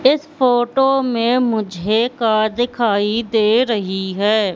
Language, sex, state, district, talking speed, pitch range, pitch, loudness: Hindi, female, Madhya Pradesh, Katni, 120 wpm, 215-245 Hz, 230 Hz, -17 LUFS